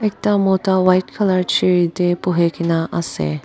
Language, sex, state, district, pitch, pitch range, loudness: Nagamese, female, Nagaland, Dimapur, 180 Hz, 170-190 Hz, -17 LUFS